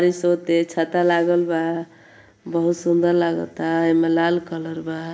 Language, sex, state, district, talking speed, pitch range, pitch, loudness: Bhojpuri, female, Uttar Pradesh, Ghazipur, 115 wpm, 165-175 Hz, 170 Hz, -20 LUFS